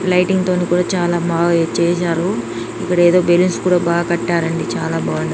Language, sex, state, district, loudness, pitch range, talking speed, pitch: Telugu, female, Telangana, Nalgonda, -16 LUFS, 170-180 Hz, 155 wpm, 175 Hz